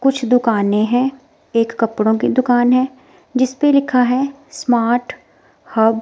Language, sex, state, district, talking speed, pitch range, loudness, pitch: Hindi, female, Himachal Pradesh, Shimla, 140 wpm, 230-270 Hz, -16 LUFS, 250 Hz